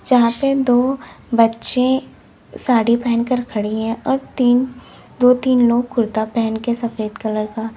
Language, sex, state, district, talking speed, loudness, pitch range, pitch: Hindi, female, Uttar Pradesh, Lalitpur, 155 wpm, -18 LUFS, 225-255 Hz, 240 Hz